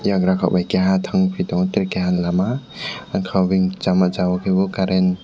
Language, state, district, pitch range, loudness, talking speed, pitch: Kokborok, Tripura, West Tripura, 90-100 Hz, -19 LUFS, 170 wpm, 95 Hz